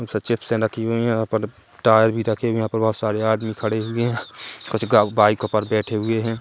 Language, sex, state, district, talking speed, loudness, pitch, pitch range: Hindi, male, Chhattisgarh, Kabirdham, 255 wpm, -21 LUFS, 110 Hz, 110-115 Hz